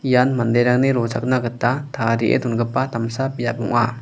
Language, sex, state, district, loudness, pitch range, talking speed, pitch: Garo, male, Meghalaya, West Garo Hills, -20 LUFS, 115-130 Hz, 135 wpm, 120 Hz